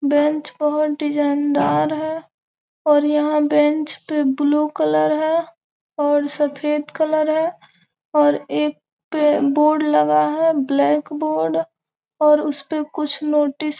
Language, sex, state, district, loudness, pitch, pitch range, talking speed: Hindi, female, Bihar, Gopalganj, -19 LUFS, 295 Hz, 285-305 Hz, 120 wpm